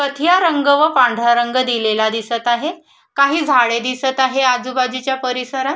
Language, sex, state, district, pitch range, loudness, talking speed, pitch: Marathi, female, Maharashtra, Solapur, 240-280 Hz, -16 LUFS, 145 wpm, 255 Hz